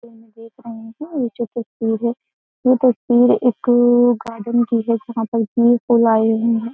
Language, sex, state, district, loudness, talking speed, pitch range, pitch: Hindi, female, Uttar Pradesh, Jyotiba Phule Nagar, -17 LUFS, 140 wpm, 225-240 Hz, 235 Hz